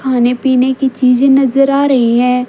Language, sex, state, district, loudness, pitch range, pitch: Hindi, female, Haryana, Jhajjar, -11 LUFS, 250-270 Hz, 260 Hz